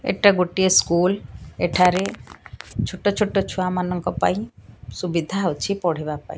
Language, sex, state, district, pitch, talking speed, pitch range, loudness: Odia, female, Odisha, Sambalpur, 180 Hz, 115 wpm, 170-190 Hz, -21 LUFS